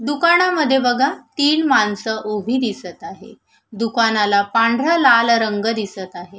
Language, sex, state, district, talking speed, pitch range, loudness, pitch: Marathi, female, Maharashtra, Sindhudurg, 120 wpm, 210-280 Hz, -17 LUFS, 230 Hz